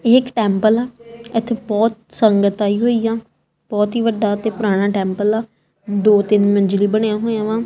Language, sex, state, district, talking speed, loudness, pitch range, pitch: Punjabi, female, Punjab, Kapurthala, 190 wpm, -17 LUFS, 205-230 Hz, 220 Hz